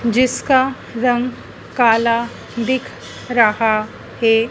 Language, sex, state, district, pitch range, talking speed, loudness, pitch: Hindi, female, Madhya Pradesh, Dhar, 230-250 Hz, 80 wpm, -17 LUFS, 235 Hz